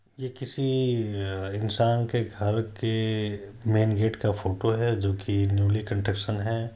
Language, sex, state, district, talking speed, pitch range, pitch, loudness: Hindi, male, Bihar, Supaul, 140 wpm, 100-115 Hz, 110 Hz, -27 LUFS